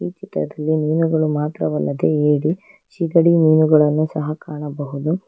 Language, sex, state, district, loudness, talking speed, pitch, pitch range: Kannada, female, Karnataka, Bangalore, -18 LUFS, 100 wpm, 155 Hz, 150-160 Hz